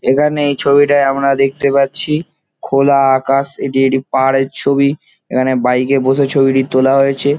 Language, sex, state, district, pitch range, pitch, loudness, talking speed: Bengali, male, West Bengal, Jalpaiguri, 135-140 Hz, 135 Hz, -13 LUFS, 155 wpm